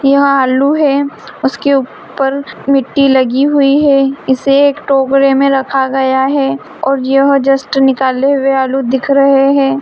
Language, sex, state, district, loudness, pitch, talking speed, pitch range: Hindi, female, Bihar, Purnia, -11 LUFS, 275 Hz, 155 wpm, 270-280 Hz